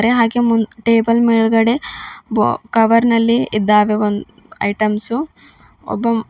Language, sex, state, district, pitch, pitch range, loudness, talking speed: Kannada, female, Karnataka, Bidar, 230 Hz, 215-235 Hz, -15 LUFS, 125 wpm